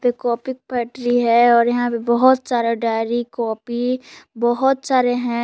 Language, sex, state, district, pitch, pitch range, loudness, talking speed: Hindi, female, Jharkhand, Palamu, 240 Hz, 235-250 Hz, -18 LUFS, 165 wpm